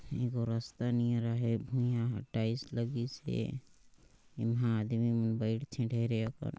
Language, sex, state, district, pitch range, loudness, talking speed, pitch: Chhattisgarhi, male, Chhattisgarh, Sarguja, 115-120 Hz, -34 LUFS, 120 wpm, 120 Hz